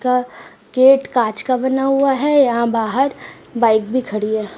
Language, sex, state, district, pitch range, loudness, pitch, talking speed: Hindi, female, Uttar Pradesh, Muzaffarnagar, 225-270 Hz, -16 LUFS, 250 Hz, 170 wpm